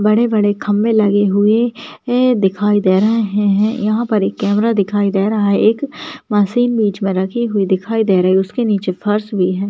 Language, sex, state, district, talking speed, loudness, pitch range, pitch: Hindi, female, Rajasthan, Churu, 190 wpm, -15 LUFS, 200-225 Hz, 210 Hz